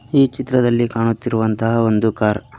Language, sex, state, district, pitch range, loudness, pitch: Kannada, male, Karnataka, Koppal, 110-125 Hz, -17 LUFS, 115 Hz